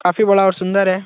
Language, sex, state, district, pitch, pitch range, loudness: Hindi, male, Bihar, Jahanabad, 195 Hz, 185-195 Hz, -14 LUFS